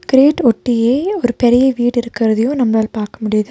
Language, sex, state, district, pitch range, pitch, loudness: Tamil, female, Tamil Nadu, Nilgiris, 220-260 Hz, 240 Hz, -14 LUFS